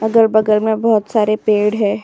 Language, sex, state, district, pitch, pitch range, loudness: Hindi, female, Uttar Pradesh, Jyotiba Phule Nagar, 215 Hz, 210-220 Hz, -15 LUFS